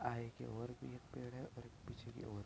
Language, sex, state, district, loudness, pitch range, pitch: Hindi, male, Uttar Pradesh, Budaun, -50 LUFS, 115-125 Hz, 120 Hz